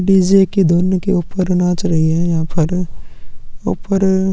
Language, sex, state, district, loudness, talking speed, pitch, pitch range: Hindi, male, Chhattisgarh, Sukma, -15 LUFS, 150 wpm, 180 Hz, 170-190 Hz